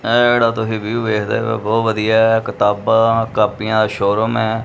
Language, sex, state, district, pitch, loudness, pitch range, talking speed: Punjabi, male, Punjab, Kapurthala, 110 Hz, -16 LUFS, 105-115 Hz, 195 wpm